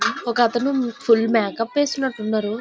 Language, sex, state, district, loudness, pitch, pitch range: Telugu, female, Andhra Pradesh, Visakhapatnam, -20 LUFS, 230 Hz, 225-260 Hz